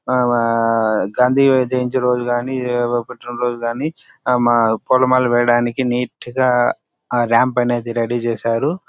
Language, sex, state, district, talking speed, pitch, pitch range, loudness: Telugu, male, Andhra Pradesh, Chittoor, 115 wpm, 120 Hz, 120-125 Hz, -17 LUFS